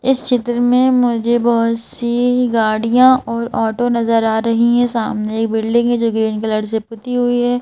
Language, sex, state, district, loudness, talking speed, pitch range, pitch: Hindi, female, Madhya Pradesh, Bhopal, -15 LUFS, 190 wpm, 225-245 Hz, 235 Hz